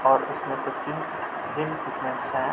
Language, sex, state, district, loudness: Hindi, male, Uttar Pradesh, Budaun, -28 LUFS